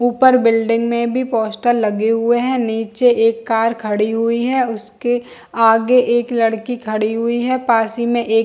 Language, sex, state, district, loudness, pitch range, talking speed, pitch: Hindi, female, Chhattisgarh, Bilaspur, -16 LUFS, 225-245 Hz, 180 wpm, 230 Hz